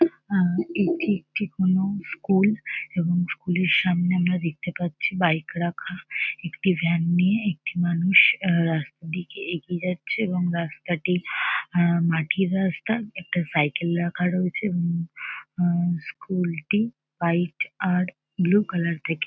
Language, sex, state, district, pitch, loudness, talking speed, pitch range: Bengali, female, West Bengal, North 24 Parganas, 175 Hz, -24 LUFS, 120 wpm, 170-190 Hz